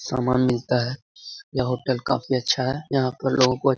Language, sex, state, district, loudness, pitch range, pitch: Hindi, male, Bihar, Jahanabad, -23 LUFS, 125-135 Hz, 130 Hz